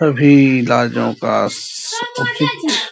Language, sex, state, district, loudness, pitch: Hindi, male, Bihar, Araria, -15 LUFS, 145 Hz